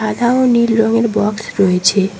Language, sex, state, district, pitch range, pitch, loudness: Bengali, female, West Bengal, Cooch Behar, 195-230 Hz, 215 Hz, -14 LUFS